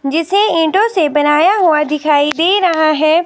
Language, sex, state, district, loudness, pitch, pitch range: Hindi, female, Himachal Pradesh, Shimla, -12 LUFS, 320 Hz, 300-360 Hz